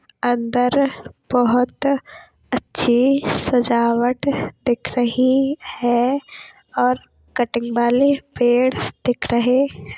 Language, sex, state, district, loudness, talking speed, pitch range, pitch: Hindi, female, Uttar Pradesh, Hamirpur, -19 LUFS, 85 wpm, 240-270 Hz, 250 Hz